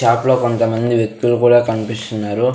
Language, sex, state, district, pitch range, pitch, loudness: Telugu, male, Andhra Pradesh, Sri Satya Sai, 110-120 Hz, 115 Hz, -16 LUFS